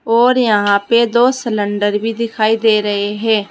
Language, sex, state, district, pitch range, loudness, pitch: Hindi, female, Uttar Pradesh, Saharanpur, 205-235 Hz, -14 LUFS, 220 Hz